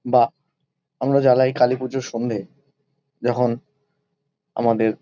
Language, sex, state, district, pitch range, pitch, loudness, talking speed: Bengali, male, West Bengal, Kolkata, 120-140 Hz, 130 Hz, -21 LUFS, 95 wpm